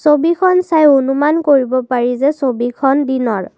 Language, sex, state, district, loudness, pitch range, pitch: Assamese, female, Assam, Kamrup Metropolitan, -13 LUFS, 255-300 Hz, 275 Hz